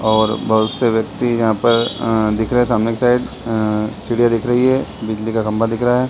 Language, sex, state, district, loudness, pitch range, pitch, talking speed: Hindi, male, Uttar Pradesh, Deoria, -17 LUFS, 110-120 Hz, 115 Hz, 225 wpm